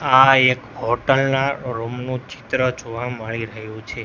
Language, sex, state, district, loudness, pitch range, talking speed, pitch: Gujarati, male, Gujarat, Gandhinagar, -20 LUFS, 115-130 Hz, 165 wpm, 125 Hz